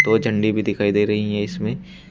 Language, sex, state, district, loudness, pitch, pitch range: Hindi, male, Uttar Pradesh, Shamli, -20 LUFS, 105 Hz, 105-110 Hz